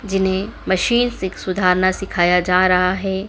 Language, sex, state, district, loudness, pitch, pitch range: Hindi, female, Madhya Pradesh, Dhar, -18 LUFS, 190 Hz, 180-195 Hz